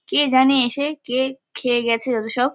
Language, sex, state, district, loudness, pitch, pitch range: Bengali, female, West Bengal, Kolkata, -19 LUFS, 260 Hz, 245-270 Hz